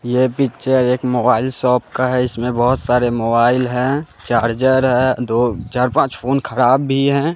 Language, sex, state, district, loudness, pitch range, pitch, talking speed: Hindi, male, Bihar, West Champaran, -16 LUFS, 120-130 Hz, 125 Hz, 170 wpm